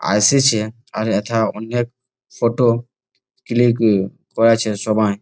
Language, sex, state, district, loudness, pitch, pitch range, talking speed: Bengali, male, West Bengal, Jalpaiguri, -18 LUFS, 115 Hz, 110-120 Hz, 90 wpm